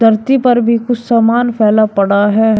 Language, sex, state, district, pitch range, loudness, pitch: Hindi, male, Uttar Pradesh, Shamli, 215-240 Hz, -11 LUFS, 225 Hz